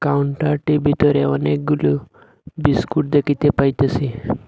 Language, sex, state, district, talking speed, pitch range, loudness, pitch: Bengali, male, Assam, Hailakandi, 80 wpm, 120-145 Hz, -18 LUFS, 140 Hz